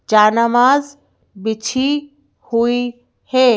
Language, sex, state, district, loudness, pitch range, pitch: Hindi, female, Madhya Pradesh, Bhopal, -16 LUFS, 230-270 Hz, 245 Hz